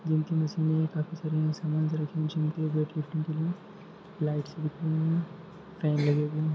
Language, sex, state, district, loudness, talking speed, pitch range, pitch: Hindi, male, Jharkhand, Jamtara, -30 LUFS, 135 wpm, 155-165 Hz, 155 Hz